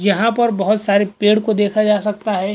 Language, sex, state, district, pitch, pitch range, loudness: Hindi, male, Goa, North and South Goa, 210 Hz, 200-215 Hz, -16 LUFS